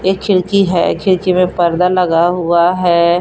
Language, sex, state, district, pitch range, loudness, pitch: Hindi, female, Jharkhand, Palamu, 170-185 Hz, -13 LUFS, 180 Hz